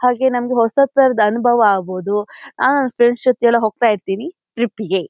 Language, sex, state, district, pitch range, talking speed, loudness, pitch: Kannada, female, Karnataka, Shimoga, 210-255 Hz, 140 wpm, -16 LUFS, 235 Hz